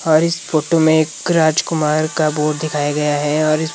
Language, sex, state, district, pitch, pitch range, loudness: Hindi, male, Himachal Pradesh, Shimla, 155 Hz, 150-160 Hz, -16 LUFS